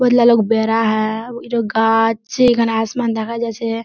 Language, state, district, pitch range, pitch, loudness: Surjapuri, Bihar, Kishanganj, 225-235 Hz, 225 Hz, -16 LUFS